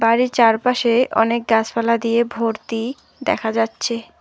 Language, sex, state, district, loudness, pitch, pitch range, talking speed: Bengali, female, West Bengal, Alipurduar, -19 LUFS, 230 Hz, 225-235 Hz, 115 wpm